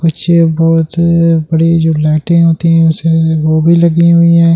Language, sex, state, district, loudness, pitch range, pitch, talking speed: Hindi, male, Delhi, New Delhi, -9 LUFS, 160-170 Hz, 165 Hz, 170 wpm